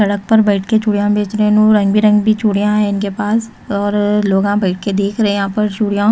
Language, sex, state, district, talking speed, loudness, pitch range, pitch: Hindi, female, Chhattisgarh, Raipur, 265 wpm, -14 LUFS, 200-215 Hz, 205 Hz